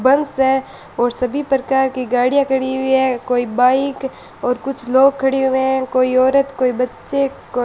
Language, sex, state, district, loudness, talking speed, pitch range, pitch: Hindi, female, Rajasthan, Bikaner, -17 LUFS, 175 wpm, 250-270 Hz, 265 Hz